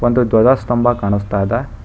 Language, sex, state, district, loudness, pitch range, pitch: Kannada, male, Karnataka, Bangalore, -15 LUFS, 100-120 Hz, 115 Hz